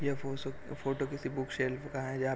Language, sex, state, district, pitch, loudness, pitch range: Hindi, male, Chhattisgarh, Korba, 135 Hz, -37 LUFS, 130-140 Hz